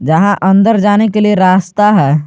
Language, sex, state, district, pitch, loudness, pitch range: Hindi, male, Jharkhand, Garhwa, 200 Hz, -10 LUFS, 185-210 Hz